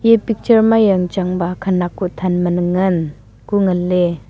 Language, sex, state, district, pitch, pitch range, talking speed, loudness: Wancho, female, Arunachal Pradesh, Longding, 180 Hz, 175-200 Hz, 155 wpm, -16 LUFS